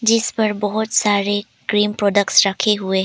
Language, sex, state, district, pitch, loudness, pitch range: Hindi, female, Arunachal Pradesh, Papum Pare, 210 Hz, -17 LUFS, 200-215 Hz